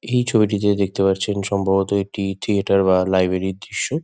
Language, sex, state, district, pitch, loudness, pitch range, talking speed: Bengali, male, West Bengal, Kolkata, 100 Hz, -19 LUFS, 95-105 Hz, 165 wpm